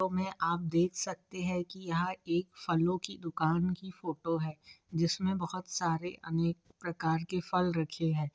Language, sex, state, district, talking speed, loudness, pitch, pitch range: Hindi, male, Chhattisgarh, Bilaspur, 170 wpm, -34 LUFS, 175 Hz, 165-185 Hz